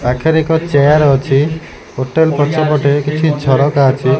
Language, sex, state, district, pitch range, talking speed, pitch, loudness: Odia, male, Odisha, Malkangiri, 135-155 Hz, 140 wpm, 145 Hz, -12 LUFS